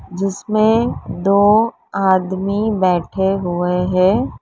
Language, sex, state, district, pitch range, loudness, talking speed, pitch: Hindi, female, Uttar Pradesh, Lalitpur, 185-210 Hz, -16 LUFS, 80 wpm, 195 Hz